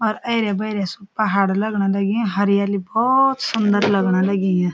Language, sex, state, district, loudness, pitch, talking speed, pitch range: Garhwali, female, Uttarakhand, Uttarkashi, -19 LUFS, 200 Hz, 150 wpm, 195-215 Hz